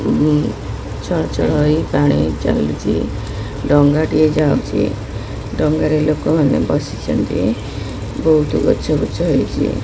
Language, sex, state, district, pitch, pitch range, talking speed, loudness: Odia, female, Odisha, Khordha, 145 Hz, 105-155 Hz, 75 wpm, -17 LUFS